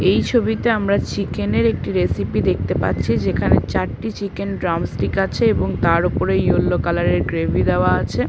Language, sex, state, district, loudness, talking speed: Bengali, female, West Bengal, Paschim Medinipur, -19 LUFS, 175 wpm